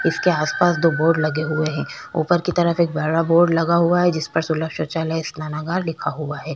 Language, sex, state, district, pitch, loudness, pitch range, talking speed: Hindi, female, Chhattisgarh, Korba, 165 Hz, -20 LUFS, 155-170 Hz, 210 wpm